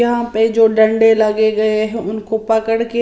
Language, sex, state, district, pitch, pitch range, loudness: Hindi, female, Maharashtra, Washim, 220 Hz, 215-225 Hz, -14 LUFS